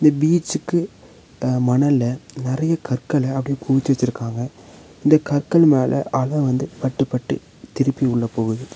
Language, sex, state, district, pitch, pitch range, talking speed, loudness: Tamil, male, Tamil Nadu, Nilgiris, 135 Hz, 125-145 Hz, 125 wpm, -20 LUFS